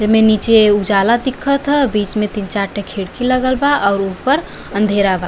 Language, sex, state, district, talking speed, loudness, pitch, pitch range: Bhojpuri, female, Uttar Pradesh, Varanasi, 195 wpm, -15 LUFS, 215 Hz, 200-255 Hz